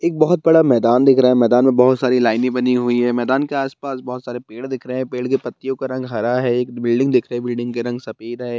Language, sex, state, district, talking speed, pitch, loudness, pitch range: Hindi, male, Bihar, Bhagalpur, 285 wpm, 125 Hz, -17 LUFS, 120-130 Hz